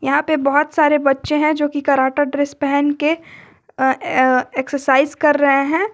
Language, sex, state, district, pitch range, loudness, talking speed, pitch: Hindi, female, Jharkhand, Garhwa, 275-300 Hz, -16 LUFS, 160 wpm, 285 Hz